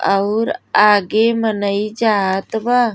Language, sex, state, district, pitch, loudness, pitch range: Bhojpuri, female, Uttar Pradesh, Gorakhpur, 215 Hz, -16 LUFS, 200-225 Hz